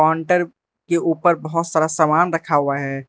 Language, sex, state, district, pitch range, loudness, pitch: Hindi, male, Arunachal Pradesh, Lower Dibang Valley, 145-170 Hz, -19 LUFS, 160 Hz